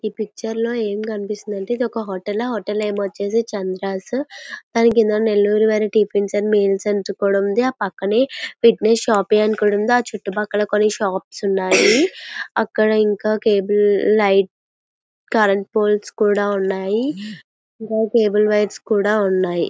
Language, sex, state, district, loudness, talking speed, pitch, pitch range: Telugu, female, Andhra Pradesh, Visakhapatnam, -18 LUFS, 130 wpm, 210 Hz, 200-220 Hz